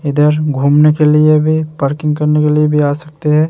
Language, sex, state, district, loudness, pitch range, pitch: Hindi, male, Bihar, Vaishali, -12 LUFS, 150-155 Hz, 150 Hz